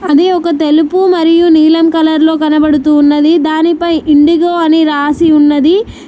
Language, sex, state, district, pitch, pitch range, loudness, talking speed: Telugu, female, Telangana, Mahabubabad, 320 Hz, 300-335 Hz, -9 LUFS, 130 wpm